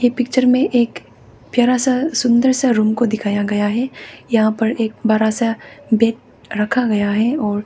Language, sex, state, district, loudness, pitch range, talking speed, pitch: Hindi, female, Arunachal Pradesh, Papum Pare, -17 LUFS, 215-250 Hz, 170 wpm, 230 Hz